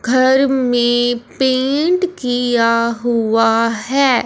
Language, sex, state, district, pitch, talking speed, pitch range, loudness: Hindi, male, Punjab, Fazilka, 245 Hz, 85 wpm, 230-265 Hz, -15 LUFS